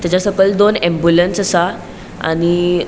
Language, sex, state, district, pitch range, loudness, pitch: Konkani, female, Goa, North and South Goa, 170-195 Hz, -14 LUFS, 175 Hz